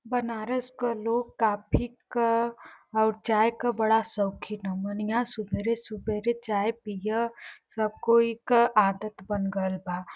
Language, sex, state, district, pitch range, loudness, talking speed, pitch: Bhojpuri, female, Uttar Pradesh, Varanasi, 210-235 Hz, -28 LUFS, 135 wpm, 220 Hz